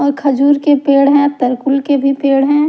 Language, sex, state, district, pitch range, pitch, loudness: Hindi, female, Haryana, Charkhi Dadri, 275-285 Hz, 280 Hz, -12 LUFS